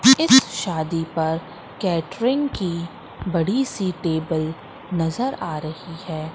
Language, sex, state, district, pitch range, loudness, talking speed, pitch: Hindi, female, Madhya Pradesh, Katni, 160-205 Hz, -22 LUFS, 115 wpm, 170 Hz